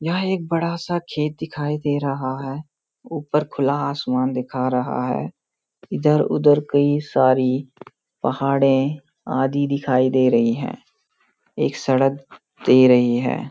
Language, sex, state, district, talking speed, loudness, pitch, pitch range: Hindi, male, Uttarakhand, Uttarkashi, 130 wpm, -20 LUFS, 140 Hz, 130-150 Hz